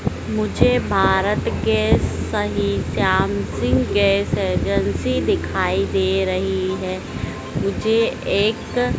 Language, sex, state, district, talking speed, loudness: Hindi, female, Madhya Pradesh, Dhar, 95 wpm, -20 LUFS